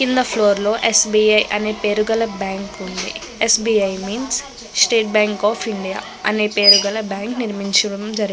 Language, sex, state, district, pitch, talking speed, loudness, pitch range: Telugu, female, Andhra Pradesh, Krishna, 210 Hz, 180 wpm, -17 LUFS, 200-220 Hz